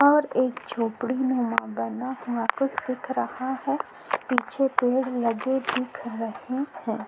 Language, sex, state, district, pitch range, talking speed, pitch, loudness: Hindi, female, Bihar, Vaishali, 235-265 Hz, 135 wpm, 255 Hz, -27 LUFS